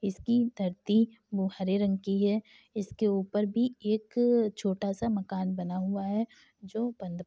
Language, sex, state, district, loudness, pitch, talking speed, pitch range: Hindi, female, Uttar Pradesh, Jalaun, -30 LUFS, 205 Hz, 175 wpm, 195-225 Hz